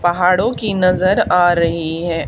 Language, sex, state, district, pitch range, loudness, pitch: Hindi, female, Haryana, Charkhi Dadri, 170-185 Hz, -15 LUFS, 175 Hz